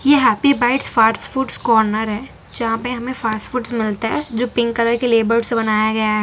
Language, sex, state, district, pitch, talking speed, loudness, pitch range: Hindi, female, Gujarat, Valsad, 230 Hz, 220 wpm, -18 LUFS, 220-250 Hz